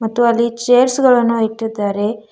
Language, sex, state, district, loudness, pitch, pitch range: Kannada, female, Karnataka, Bidar, -15 LUFS, 235 Hz, 220-245 Hz